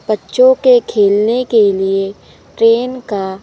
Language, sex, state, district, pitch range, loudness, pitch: Hindi, female, Madhya Pradesh, Umaria, 200-255 Hz, -13 LUFS, 220 Hz